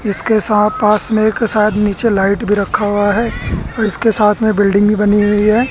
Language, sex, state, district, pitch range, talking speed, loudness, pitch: Hindi, male, Haryana, Jhajjar, 205-220 Hz, 220 wpm, -13 LUFS, 210 Hz